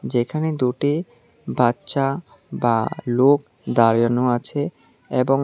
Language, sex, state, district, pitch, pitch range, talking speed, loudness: Bengali, male, Tripura, South Tripura, 130 Hz, 120-145 Hz, 90 wpm, -21 LUFS